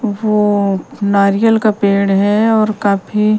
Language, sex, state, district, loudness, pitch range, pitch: Hindi, female, Bihar, Patna, -13 LUFS, 200-215 Hz, 210 Hz